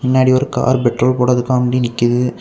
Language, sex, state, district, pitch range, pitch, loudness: Tamil, male, Tamil Nadu, Kanyakumari, 125-130 Hz, 125 Hz, -15 LUFS